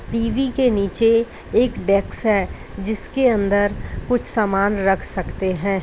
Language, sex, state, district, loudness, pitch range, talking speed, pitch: Hindi, female, Uttar Pradesh, Ghazipur, -20 LUFS, 195-235 Hz, 145 wpm, 215 Hz